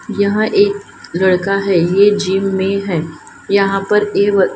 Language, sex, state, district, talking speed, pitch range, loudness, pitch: Hindi, female, Maharashtra, Gondia, 145 wpm, 190-205 Hz, -14 LUFS, 195 Hz